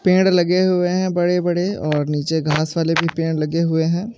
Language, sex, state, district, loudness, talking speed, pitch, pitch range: Hindi, male, Maharashtra, Mumbai Suburban, -18 LUFS, 215 wpm, 170 Hz, 160-180 Hz